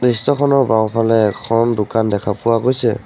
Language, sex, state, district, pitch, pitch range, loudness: Assamese, male, Assam, Sonitpur, 115 Hz, 110-125 Hz, -16 LUFS